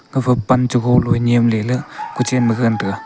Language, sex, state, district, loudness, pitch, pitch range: Wancho, male, Arunachal Pradesh, Longding, -16 LUFS, 120 Hz, 115-125 Hz